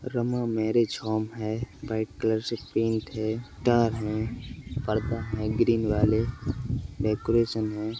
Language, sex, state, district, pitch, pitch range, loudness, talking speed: Hindi, male, Uttar Pradesh, Etah, 110 Hz, 110-120 Hz, -28 LUFS, 125 wpm